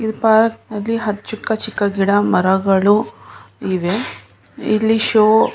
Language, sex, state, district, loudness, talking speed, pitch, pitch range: Kannada, female, Karnataka, Mysore, -16 LUFS, 120 wpm, 215 Hz, 200-220 Hz